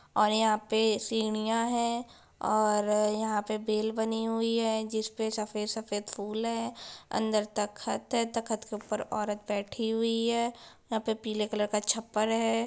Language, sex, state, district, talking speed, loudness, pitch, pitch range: Hindi, female, Bihar, Gopalganj, 170 wpm, -30 LUFS, 220 Hz, 210-225 Hz